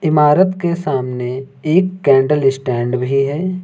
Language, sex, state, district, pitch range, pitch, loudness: Hindi, male, Uttar Pradesh, Lucknow, 135-175 Hz, 145 Hz, -16 LUFS